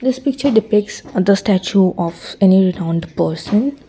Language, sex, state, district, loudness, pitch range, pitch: English, female, Assam, Kamrup Metropolitan, -16 LUFS, 180-220 Hz, 195 Hz